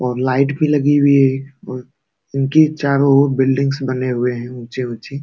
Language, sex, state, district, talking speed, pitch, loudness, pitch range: Hindi, male, Uttar Pradesh, Jalaun, 195 wpm, 135 Hz, -16 LUFS, 125-140 Hz